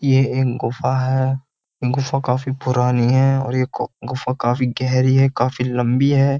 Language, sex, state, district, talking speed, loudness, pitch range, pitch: Hindi, male, Uttar Pradesh, Jyotiba Phule Nagar, 160 wpm, -19 LUFS, 125-135 Hz, 130 Hz